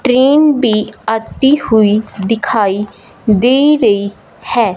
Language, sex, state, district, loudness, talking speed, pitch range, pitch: Hindi, female, Punjab, Fazilka, -12 LUFS, 100 wpm, 210-260 Hz, 225 Hz